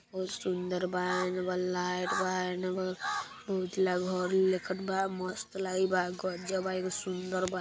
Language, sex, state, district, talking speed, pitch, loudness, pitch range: Maithili, male, Bihar, Vaishali, 135 wpm, 185 Hz, -33 LUFS, 180-185 Hz